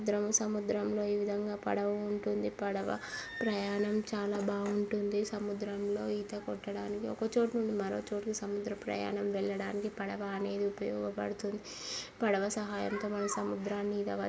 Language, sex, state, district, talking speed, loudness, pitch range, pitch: Telugu, female, Andhra Pradesh, Guntur, 125 wpm, -35 LUFS, 200-210 Hz, 205 Hz